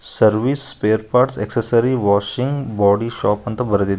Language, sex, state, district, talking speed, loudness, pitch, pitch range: Kannada, male, Karnataka, Koppal, 165 wpm, -17 LUFS, 110 Hz, 105-125 Hz